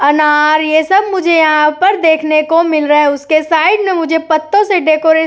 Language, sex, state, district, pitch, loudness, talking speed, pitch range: Hindi, female, Uttar Pradesh, Etah, 315 Hz, -11 LUFS, 215 wpm, 305-340 Hz